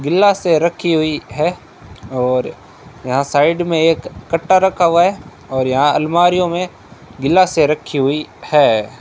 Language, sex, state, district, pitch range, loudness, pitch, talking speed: Hindi, male, Rajasthan, Bikaner, 130-170 Hz, -15 LUFS, 150 Hz, 140 wpm